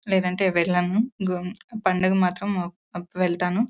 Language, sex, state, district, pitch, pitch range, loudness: Telugu, female, Karnataka, Bellary, 185 Hz, 180-195 Hz, -24 LUFS